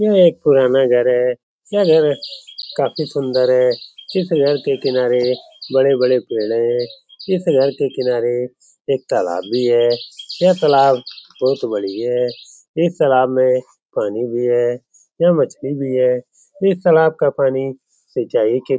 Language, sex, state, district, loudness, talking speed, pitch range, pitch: Hindi, male, Bihar, Lakhisarai, -17 LUFS, 155 wpm, 125-165 Hz, 135 Hz